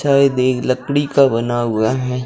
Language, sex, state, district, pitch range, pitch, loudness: Hindi, male, Rajasthan, Jaisalmer, 120-140 Hz, 130 Hz, -16 LUFS